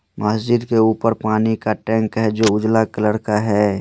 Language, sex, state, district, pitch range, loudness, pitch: Hindi, male, Maharashtra, Chandrapur, 105-110 Hz, -18 LUFS, 110 Hz